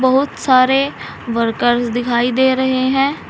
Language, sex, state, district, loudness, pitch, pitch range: Hindi, female, Uttar Pradesh, Saharanpur, -15 LUFS, 255 Hz, 240-265 Hz